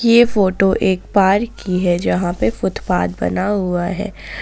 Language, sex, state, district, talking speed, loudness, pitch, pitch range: Hindi, female, Jharkhand, Ranchi, 165 wpm, -17 LUFS, 190 Hz, 175-205 Hz